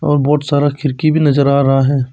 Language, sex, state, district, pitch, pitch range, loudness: Hindi, male, Arunachal Pradesh, Papum Pare, 145 Hz, 140-150 Hz, -13 LUFS